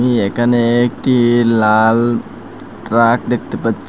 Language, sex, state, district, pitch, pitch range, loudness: Bengali, male, Assam, Hailakandi, 120 Hz, 115-120 Hz, -14 LUFS